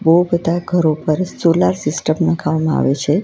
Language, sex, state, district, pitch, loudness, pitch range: Gujarati, female, Gujarat, Valsad, 165 Hz, -16 LUFS, 155-170 Hz